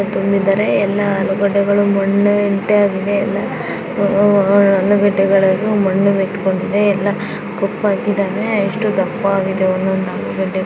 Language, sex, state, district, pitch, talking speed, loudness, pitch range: Kannada, female, Karnataka, Bijapur, 200 Hz, 95 wpm, -15 LUFS, 195-205 Hz